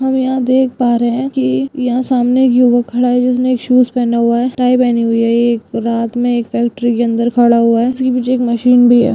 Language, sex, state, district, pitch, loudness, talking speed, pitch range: Hindi, female, Bihar, Purnia, 245 Hz, -13 LUFS, 250 wpm, 235-250 Hz